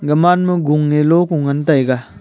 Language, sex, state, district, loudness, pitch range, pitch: Wancho, male, Arunachal Pradesh, Longding, -14 LUFS, 145-170 Hz, 150 Hz